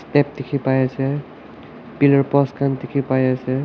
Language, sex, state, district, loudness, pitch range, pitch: Nagamese, male, Nagaland, Kohima, -19 LUFS, 130-140 Hz, 140 Hz